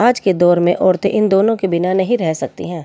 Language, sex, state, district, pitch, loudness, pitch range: Hindi, female, Delhi, New Delhi, 190 Hz, -15 LUFS, 175-205 Hz